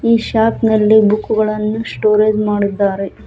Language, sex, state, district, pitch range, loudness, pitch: Kannada, female, Karnataka, Bangalore, 210-220 Hz, -14 LUFS, 215 Hz